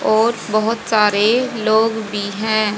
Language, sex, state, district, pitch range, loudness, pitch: Hindi, female, Haryana, Rohtak, 210-225 Hz, -17 LUFS, 220 Hz